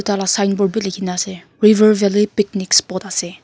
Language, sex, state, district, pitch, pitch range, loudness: Nagamese, female, Nagaland, Kohima, 200 Hz, 190-210 Hz, -16 LUFS